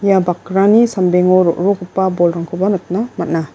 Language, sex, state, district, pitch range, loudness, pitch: Garo, female, Meghalaya, West Garo Hills, 175-195 Hz, -14 LUFS, 185 Hz